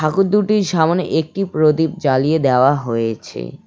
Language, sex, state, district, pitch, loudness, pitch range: Bengali, male, West Bengal, Cooch Behar, 155 Hz, -16 LUFS, 135-185 Hz